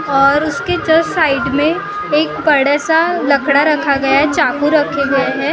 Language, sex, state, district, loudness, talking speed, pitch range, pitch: Hindi, female, Maharashtra, Gondia, -13 LUFS, 175 wpm, 280-320 Hz, 295 Hz